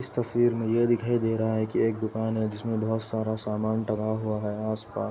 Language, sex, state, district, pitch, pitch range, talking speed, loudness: Hindi, male, Uttar Pradesh, Etah, 110 Hz, 110-115 Hz, 245 wpm, -27 LUFS